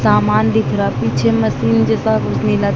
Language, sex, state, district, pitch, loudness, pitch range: Hindi, female, Madhya Pradesh, Dhar, 110 Hz, -15 LUFS, 105-115 Hz